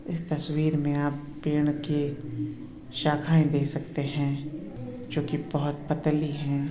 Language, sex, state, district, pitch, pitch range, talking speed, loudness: Hindi, male, Uttar Pradesh, Hamirpur, 150 Hz, 145-150 Hz, 125 wpm, -28 LUFS